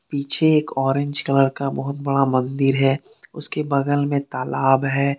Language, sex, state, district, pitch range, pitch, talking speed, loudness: Hindi, male, Jharkhand, Deoghar, 135-145 Hz, 140 Hz, 160 wpm, -20 LUFS